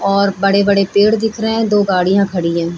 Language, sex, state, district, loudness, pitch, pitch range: Hindi, female, Bihar, Saran, -14 LUFS, 200 Hz, 190-205 Hz